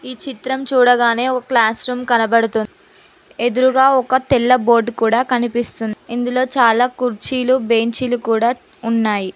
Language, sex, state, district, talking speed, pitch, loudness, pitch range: Telugu, female, Telangana, Mahabubabad, 120 wpm, 245 Hz, -16 LUFS, 230-255 Hz